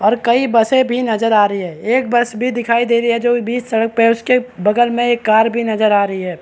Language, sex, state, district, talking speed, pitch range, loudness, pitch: Hindi, male, Chhattisgarh, Balrampur, 260 wpm, 215-240 Hz, -15 LUFS, 235 Hz